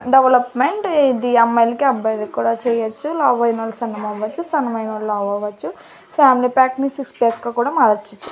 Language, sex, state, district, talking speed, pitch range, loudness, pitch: Telugu, female, Andhra Pradesh, Annamaya, 135 wpm, 220-265 Hz, -17 LUFS, 235 Hz